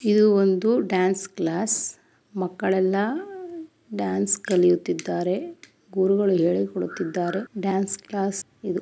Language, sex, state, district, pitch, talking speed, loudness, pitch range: Kannada, female, Karnataka, Chamarajanagar, 195 Hz, 90 wpm, -24 LUFS, 185-210 Hz